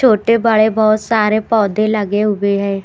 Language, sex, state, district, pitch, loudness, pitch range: Hindi, female, Haryana, Jhajjar, 215 Hz, -14 LUFS, 205-220 Hz